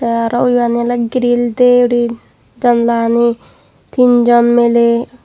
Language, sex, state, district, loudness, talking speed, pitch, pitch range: Chakma, female, Tripura, Dhalai, -12 LUFS, 125 wpm, 240 Hz, 235-245 Hz